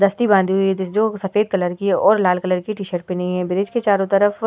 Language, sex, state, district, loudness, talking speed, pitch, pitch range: Hindi, female, Uttar Pradesh, Hamirpur, -18 LUFS, 280 wpm, 195 Hz, 185-210 Hz